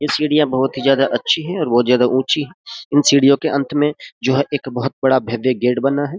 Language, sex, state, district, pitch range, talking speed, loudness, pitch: Hindi, male, Uttar Pradesh, Jyotiba Phule Nagar, 130-150 Hz, 250 wpm, -17 LUFS, 140 Hz